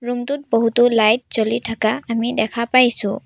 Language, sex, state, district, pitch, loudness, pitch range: Assamese, female, Assam, Sonitpur, 235 Hz, -18 LUFS, 225-245 Hz